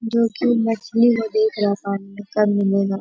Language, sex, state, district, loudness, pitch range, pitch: Hindi, female, Bihar, Bhagalpur, -20 LUFS, 200-230 Hz, 215 Hz